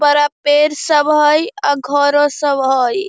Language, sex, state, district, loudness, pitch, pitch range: Hindi, female, Bihar, Darbhanga, -14 LUFS, 290 Hz, 285-300 Hz